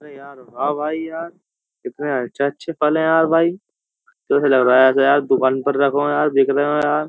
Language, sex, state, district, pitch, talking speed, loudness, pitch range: Hindi, male, Uttar Pradesh, Jyotiba Phule Nagar, 145 Hz, 205 wpm, -17 LUFS, 135-160 Hz